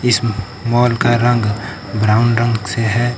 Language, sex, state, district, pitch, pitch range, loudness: Hindi, male, Uttar Pradesh, Lucknow, 115 Hz, 110-120 Hz, -16 LUFS